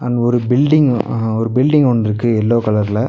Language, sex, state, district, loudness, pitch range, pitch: Tamil, male, Tamil Nadu, Nilgiris, -15 LUFS, 110-125 Hz, 120 Hz